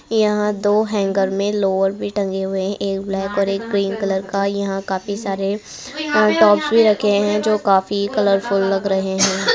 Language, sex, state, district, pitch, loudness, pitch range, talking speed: Hindi, female, Bihar, Jamui, 200 Hz, -18 LUFS, 195-210 Hz, 175 wpm